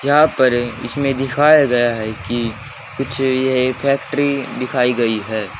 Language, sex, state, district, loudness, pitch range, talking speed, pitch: Hindi, male, Haryana, Jhajjar, -17 LUFS, 120-140 Hz, 140 wpm, 130 Hz